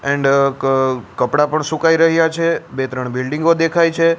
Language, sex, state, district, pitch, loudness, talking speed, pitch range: Gujarati, male, Gujarat, Gandhinagar, 150 Hz, -16 LUFS, 155 wpm, 130-165 Hz